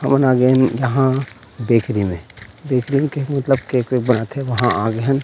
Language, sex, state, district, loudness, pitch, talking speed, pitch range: Chhattisgarhi, male, Chhattisgarh, Rajnandgaon, -18 LUFS, 125 Hz, 195 wpm, 115-135 Hz